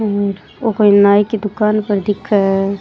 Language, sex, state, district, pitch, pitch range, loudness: Rajasthani, female, Rajasthan, Churu, 205 Hz, 200-210 Hz, -14 LUFS